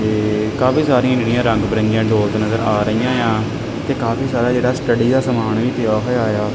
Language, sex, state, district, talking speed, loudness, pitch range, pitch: Punjabi, male, Punjab, Kapurthala, 200 wpm, -17 LUFS, 110-125 Hz, 115 Hz